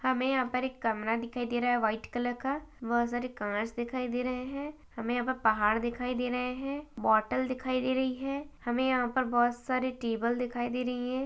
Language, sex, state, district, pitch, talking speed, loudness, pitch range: Hindi, female, Uttarakhand, Tehri Garhwal, 250 Hz, 225 wpm, -31 LUFS, 240-260 Hz